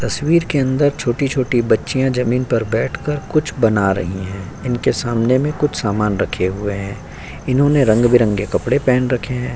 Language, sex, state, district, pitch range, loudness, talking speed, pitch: Hindi, male, Uttar Pradesh, Jyotiba Phule Nagar, 105-135 Hz, -17 LUFS, 180 wpm, 125 Hz